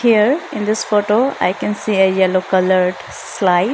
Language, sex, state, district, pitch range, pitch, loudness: English, female, Arunachal Pradesh, Lower Dibang Valley, 185-215 Hz, 205 Hz, -16 LUFS